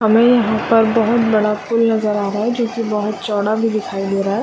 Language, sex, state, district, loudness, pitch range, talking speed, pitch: Hindi, female, Chhattisgarh, Raigarh, -16 LUFS, 210-230 Hz, 255 wpm, 220 Hz